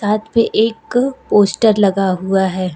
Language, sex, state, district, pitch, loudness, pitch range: Hindi, female, Uttar Pradesh, Lucknow, 210 Hz, -15 LUFS, 190-225 Hz